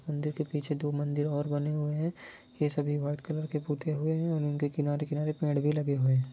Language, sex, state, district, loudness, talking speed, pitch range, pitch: Hindi, male, Bihar, Sitamarhi, -31 LUFS, 245 wpm, 145-150 Hz, 150 Hz